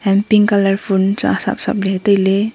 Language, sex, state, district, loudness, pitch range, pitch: Wancho, female, Arunachal Pradesh, Longding, -15 LUFS, 195-205 Hz, 200 Hz